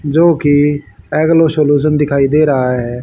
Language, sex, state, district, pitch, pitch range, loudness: Hindi, male, Haryana, Charkhi Dadri, 145 Hz, 140-155 Hz, -12 LUFS